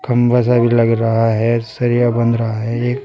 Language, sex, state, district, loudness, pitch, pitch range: Hindi, male, Uttar Pradesh, Saharanpur, -15 LUFS, 115 Hz, 115-120 Hz